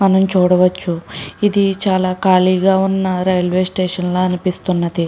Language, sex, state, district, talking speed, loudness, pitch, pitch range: Telugu, female, Andhra Pradesh, Srikakulam, 120 wpm, -15 LUFS, 185 Hz, 180-190 Hz